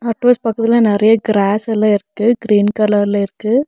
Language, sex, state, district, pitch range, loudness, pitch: Tamil, female, Tamil Nadu, Nilgiris, 205-230 Hz, -14 LUFS, 215 Hz